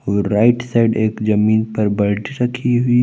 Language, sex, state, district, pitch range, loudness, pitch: Hindi, male, Jharkhand, Palamu, 105-120 Hz, -17 LUFS, 110 Hz